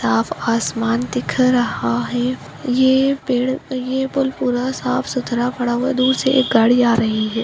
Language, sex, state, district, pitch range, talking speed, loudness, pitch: Hindi, female, Bihar, Jahanabad, 230-260 Hz, 185 wpm, -18 LUFS, 250 Hz